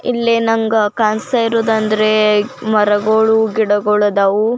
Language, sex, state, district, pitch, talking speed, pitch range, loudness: Kannada, female, Karnataka, Belgaum, 220 Hz, 105 wpm, 210-225 Hz, -14 LUFS